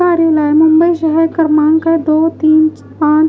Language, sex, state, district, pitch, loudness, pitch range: Hindi, female, Maharashtra, Gondia, 315 Hz, -11 LUFS, 310-325 Hz